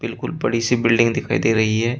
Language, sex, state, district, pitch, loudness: Hindi, male, Uttar Pradesh, Shamli, 115 Hz, -19 LUFS